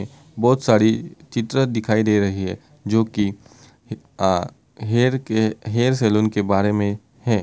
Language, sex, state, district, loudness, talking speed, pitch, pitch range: Hindi, male, Uttar Pradesh, Muzaffarnagar, -20 LUFS, 145 wpm, 110 Hz, 105-125 Hz